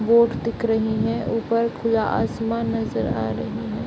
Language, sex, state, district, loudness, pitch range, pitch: Hindi, female, Bihar, Darbhanga, -23 LUFS, 225-230 Hz, 230 Hz